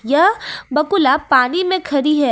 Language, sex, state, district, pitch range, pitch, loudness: Hindi, female, Jharkhand, Ranchi, 275-360 Hz, 300 Hz, -15 LUFS